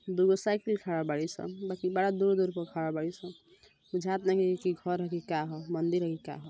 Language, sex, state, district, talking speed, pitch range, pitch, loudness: Bhojpuri, female, Uttar Pradesh, Ghazipur, 240 wpm, 165-190 Hz, 180 Hz, -31 LUFS